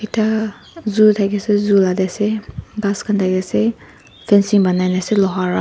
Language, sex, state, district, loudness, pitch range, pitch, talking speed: Nagamese, female, Nagaland, Dimapur, -17 LUFS, 190-215 Hz, 205 Hz, 190 wpm